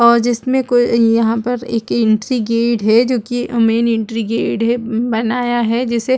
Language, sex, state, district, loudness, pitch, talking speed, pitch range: Hindi, female, Chhattisgarh, Balrampur, -15 LUFS, 235 Hz, 175 wpm, 225-245 Hz